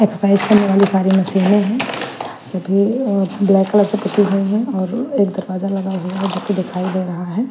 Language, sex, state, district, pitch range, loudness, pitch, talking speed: Hindi, female, Bihar, Patna, 190-205 Hz, -17 LUFS, 195 Hz, 210 wpm